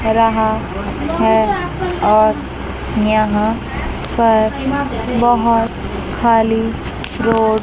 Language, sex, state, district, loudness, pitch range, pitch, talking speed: Hindi, female, Chandigarh, Chandigarh, -16 LUFS, 220-230 Hz, 225 Hz, 70 wpm